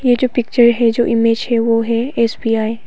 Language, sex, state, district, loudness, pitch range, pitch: Hindi, female, Arunachal Pradesh, Papum Pare, -15 LUFS, 230-240 Hz, 230 Hz